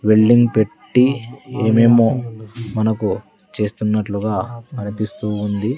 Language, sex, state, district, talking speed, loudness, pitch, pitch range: Telugu, male, Andhra Pradesh, Sri Satya Sai, 75 wpm, -18 LUFS, 110 Hz, 105-120 Hz